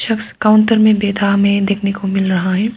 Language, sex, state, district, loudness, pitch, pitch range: Hindi, female, Arunachal Pradesh, Papum Pare, -14 LUFS, 200 Hz, 200-215 Hz